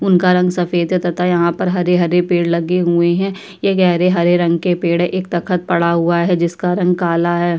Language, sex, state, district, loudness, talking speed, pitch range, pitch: Hindi, female, Uttar Pradesh, Budaun, -15 LUFS, 215 wpm, 170-180 Hz, 175 Hz